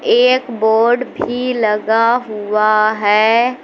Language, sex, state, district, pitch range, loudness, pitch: Hindi, female, Uttar Pradesh, Lucknow, 215-245 Hz, -14 LUFS, 225 Hz